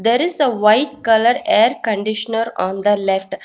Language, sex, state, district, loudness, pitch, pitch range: English, female, Telangana, Hyderabad, -16 LUFS, 225 Hz, 210-245 Hz